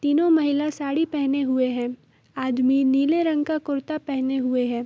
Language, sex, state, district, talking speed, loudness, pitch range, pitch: Hindi, female, Bihar, East Champaran, 185 wpm, -23 LUFS, 260-300 Hz, 280 Hz